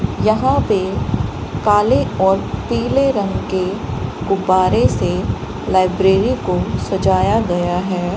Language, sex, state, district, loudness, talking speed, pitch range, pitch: Hindi, female, Rajasthan, Bikaner, -17 LUFS, 105 wpm, 180-195 Hz, 190 Hz